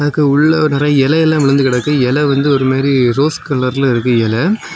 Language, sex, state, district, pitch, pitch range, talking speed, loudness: Tamil, male, Tamil Nadu, Kanyakumari, 140 Hz, 130-150 Hz, 175 wpm, -13 LUFS